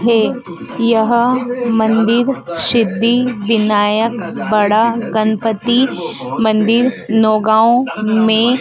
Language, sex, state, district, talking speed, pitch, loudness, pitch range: Hindi, female, Madhya Pradesh, Dhar, 65 wpm, 225 Hz, -14 LUFS, 220-240 Hz